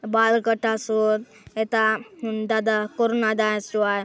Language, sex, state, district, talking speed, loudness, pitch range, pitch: Halbi, female, Chhattisgarh, Bastar, 120 wpm, -23 LUFS, 215-225 Hz, 220 Hz